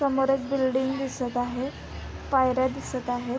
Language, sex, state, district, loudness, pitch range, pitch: Marathi, female, Maharashtra, Sindhudurg, -27 LUFS, 255-270 Hz, 260 Hz